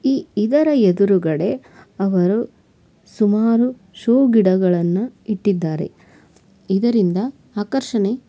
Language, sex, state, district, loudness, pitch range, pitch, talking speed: Kannada, female, Karnataka, Belgaum, -18 LUFS, 190-240 Hz, 210 Hz, 70 wpm